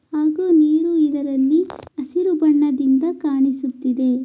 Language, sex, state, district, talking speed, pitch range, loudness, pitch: Kannada, female, Karnataka, Raichur, 85 wpm, 270-320 Hz, -18 LUFS, 295 Hz